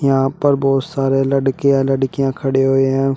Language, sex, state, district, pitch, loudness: Hindi, male, Uttar Pradesh, Shamli, 135 Hz, -16 LUFS